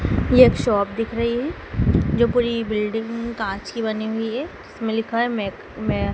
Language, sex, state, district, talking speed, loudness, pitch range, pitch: Hindi, female, Madhya Pradesh, Dhar, 185 wpm, -21 LUFS, 220-235 Hz, 225 Hz